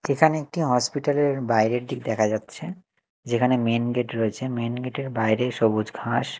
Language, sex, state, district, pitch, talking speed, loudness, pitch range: Bengali, male, Odisha, Nuapada, 125 Hz, 170 wpm, -24 LUFS, 115-140 Hz